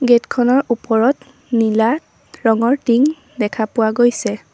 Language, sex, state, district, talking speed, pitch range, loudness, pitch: Assamese, female, Assam, Sonitpur, 120 wpm, 225-265 Hz, -16 LUFS, 240 Hz